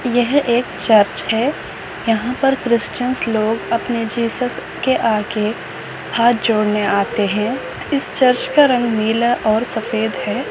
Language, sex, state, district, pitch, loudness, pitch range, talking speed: Hindi, female, Maharashtra, Nagpur, 230 Hz, -17 LUFS, 220-250 Hz, 135 wpm